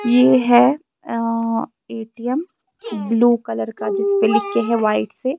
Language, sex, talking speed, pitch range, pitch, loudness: Urdu, female, 165 wpm, 210-255 Hz, 230 Hz, -18 LUFS